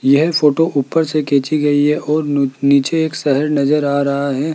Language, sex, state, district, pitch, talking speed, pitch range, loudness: Hindi, male, Rajasthan, Jaipur, 145 Hz, 210 wpm, 140-155 Hz, -15 LUFS